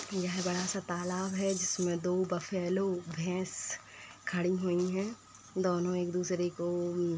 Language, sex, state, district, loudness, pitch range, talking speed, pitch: Hindi, female, Uttar Pradesh, Etah, -33 LUFS, 175-185 Hz, 140 wpm, 180 Hz